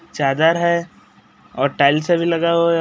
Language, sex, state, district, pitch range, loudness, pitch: Hindi, male, Chhattisgarh, Raigarh, 145-170 Hz, -17 LUFS, 170 Hz